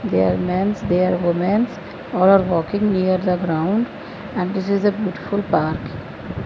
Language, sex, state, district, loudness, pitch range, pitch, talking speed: English, female, Punjab, Fazilka, -19 LUFS, 180-205 Hz, 185 Hz, 165 wpm